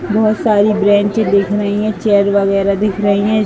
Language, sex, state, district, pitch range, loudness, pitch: Hindi, female, Uttar Pradesh, Varanasi, 200-215 Hz, -13 LUFS, 205 Hz